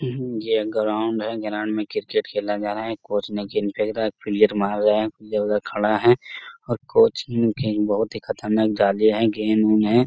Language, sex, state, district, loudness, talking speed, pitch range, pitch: Hindi, male, Bihar, Jamui, -22 LUFS, 220 wpm, 105-115 Hz, 110 Hz